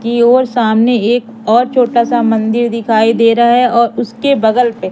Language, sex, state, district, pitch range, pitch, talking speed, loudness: Hindi, female, Madhya Pradesh, Katni, 225-245 Hz, 235 Hz, 195 wpm, -11 LUFS